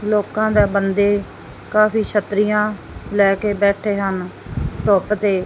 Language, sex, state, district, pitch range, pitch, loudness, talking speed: Punjabi, female, Punjab, Fazilka, 200-210 Hz, 205 Hz, -18 LUFS, 120 wpm